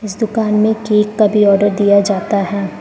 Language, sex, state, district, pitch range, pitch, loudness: Hindi, female, Arunachal Pradesh, Lower Dibang Valley, 200-215 Hz, 210 Hz, -14 LUFS